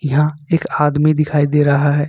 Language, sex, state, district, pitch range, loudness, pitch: Hindi, male, Jharkhand, Ranchi, 145-150 Hz, -15 LUFS, 150 Hz